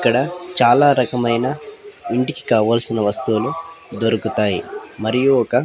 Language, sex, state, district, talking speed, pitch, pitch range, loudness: Telugu, female, Andhra Pradesh, Sri Satya Sai, 105 wpm, 120 Hz, 115-140 Hz, -18 LUFS